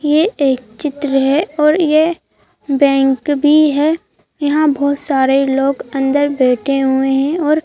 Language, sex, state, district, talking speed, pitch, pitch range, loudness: Hindi, female, Madhya Pradesh, Bhopal, 140 wpm, 285 Hz, 270-305 Hz, -14 LUFS